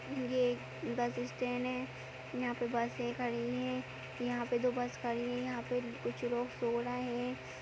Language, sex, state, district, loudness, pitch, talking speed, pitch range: Hindi, female, Uttar Pradesh, Jyotiba Phule Nagar, -37 LUFS, 245 Hz, 180 wpm, 235-245 Hz